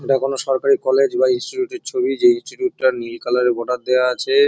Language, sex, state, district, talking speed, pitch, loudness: Bengali, male, West Bengal, North 24 Parganas, 255 wpm, 135 Hz, -18 LUFS